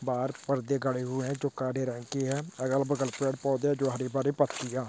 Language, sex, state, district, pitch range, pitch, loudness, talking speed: Hindi, male, West Bengal, Dakshin Dinajpur, 130-140 Hz, 135 Hz, -31 LUFS, 220 wpm